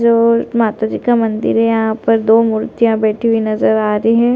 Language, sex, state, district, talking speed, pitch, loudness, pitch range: Hindi, female, Chhattisgarh, Sarguja, 220 wpm, 225 Hz, -14 LUFS, 220-230 Hz